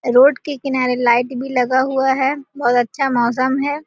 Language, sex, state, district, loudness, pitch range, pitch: Hindi, female, Bihar, Jahanabad, -17 LUFS, 250-275 Hz, 260 Hz